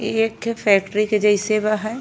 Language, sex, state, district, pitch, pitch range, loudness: Bhojpuri, female, Uttar Pradesh, Ghazipur, 215 Hz, 210-225 Hz, -19 LUFS